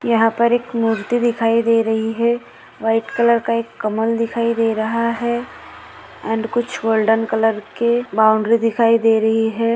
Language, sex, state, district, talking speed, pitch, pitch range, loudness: Hindi, female, Maharashtra, Solapur, 165 wpm, 230 Hz, 225-235 Hz, -18 LUFS